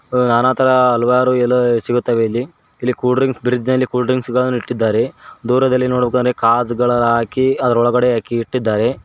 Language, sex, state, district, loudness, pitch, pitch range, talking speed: Kannada, male, Karnataka, Koppal, -16 LUFS, 125 Hz, 120-125 Hz, 135 wpm